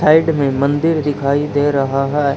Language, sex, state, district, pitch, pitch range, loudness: Hindi, male, Haryana, Charkhi Dadri, 145 Hz, 140-150 Hz, -16 LUFS